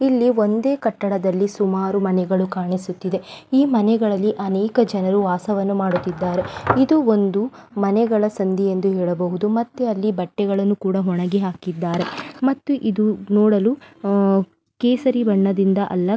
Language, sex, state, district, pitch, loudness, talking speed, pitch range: Kannada, female, Karnataka, Belgaum, 200 Hz, -20 LUFS, 110 wpm, 190-220 Hz